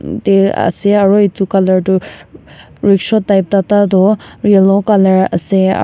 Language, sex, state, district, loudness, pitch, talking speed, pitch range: Nagamese, female, Nagaland, Kohima, -12 LUFS, 195 Hz, 125 wpm, 190-205 Hz